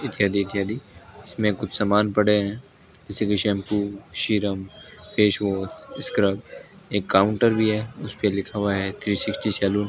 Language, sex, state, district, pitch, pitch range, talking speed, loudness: Hindi, male, Rajasthan, Bikaner, 105 Hz, 100-105 Hz, 160 wpm, -23 LUFS